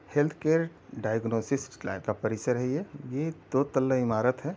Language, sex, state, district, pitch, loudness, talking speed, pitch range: Hindi, male, Uttar Pradesh, Gorakhpur, 130 Hz, -29 LUFS, 170 wpm, 115-145 Hz